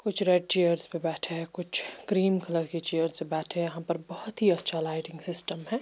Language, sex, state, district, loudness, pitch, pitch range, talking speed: Hindi, female, Bihar, Patna, -21 LUFS, 170 Hz, 165-185 Hz, 225 wpm